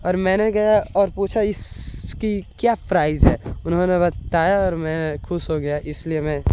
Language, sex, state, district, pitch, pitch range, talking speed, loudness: Hindi, male, Bihar, West Champaran, 180 Hz, 160-200 Hz, 165 wpm, -21 LUFS